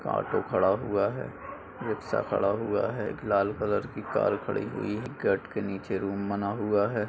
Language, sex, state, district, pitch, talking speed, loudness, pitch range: Hindi, male, Uttar Pradesh, Budaun, 100 Hz, 195 wpm, -29 LUFS, 100-105 Hz